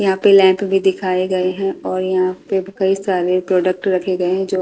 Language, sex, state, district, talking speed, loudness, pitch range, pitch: Hindi, female, Delhi, New Delhi, 235 wpm, -17 LUFS, 185-195 Hz, 190 Hz